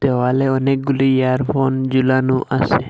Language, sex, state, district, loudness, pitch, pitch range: Bengali, male, Assam, Hailakandi, -17 LUFS, 130 Hz, 130-135 Hz